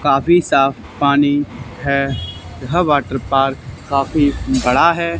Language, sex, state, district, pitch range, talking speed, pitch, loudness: Hindi, male, Haryana, Charkhi Dadri, 125-145 Hz, 115 wpm, 135 Hz, -16 LUFS